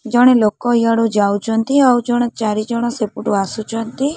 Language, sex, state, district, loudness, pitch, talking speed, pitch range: Odia, female, Odisha, Khordha, -16 LUFS, 230 Hz, 145 wpm, 215-240 Hz